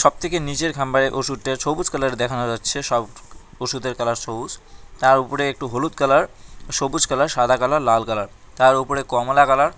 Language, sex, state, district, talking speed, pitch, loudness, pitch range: Bengali, male, West Bengal, Cooch Behar, 180 wpm, 130 Hz, -20 LUFS, 120-140 Hz